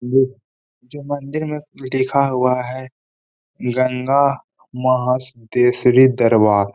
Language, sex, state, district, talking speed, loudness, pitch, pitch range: Hindi, male, Bihar, Gaya, 105 wpm, -18 LUFS, 130 Hz, 125-135 Hz